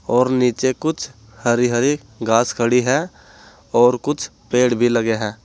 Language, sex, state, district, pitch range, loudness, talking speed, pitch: Hindi, male, Uttar Pradesh, Saharanpur, 115-130 Hz, -18 LUFS, 155 wpm, 120 Hz